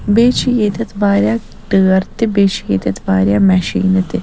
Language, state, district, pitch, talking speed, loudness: Kashmiri, Punjab, Kapurthala, 190 Hz, 155 wpm, -14 LUFS